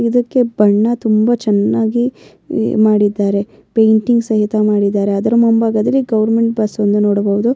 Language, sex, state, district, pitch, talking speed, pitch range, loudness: Kannada, female, Karnataka, Bellary, 220 Hz, 110 wpm, 210-230 Hz, -14 LUFS